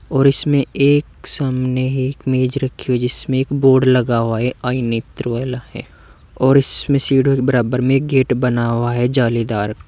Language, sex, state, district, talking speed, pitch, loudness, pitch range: Hindi, male, Uttar Pradesh, Saharanpur, 195 wpm, 130 Hz, -17 LUFS, 120-135 Hz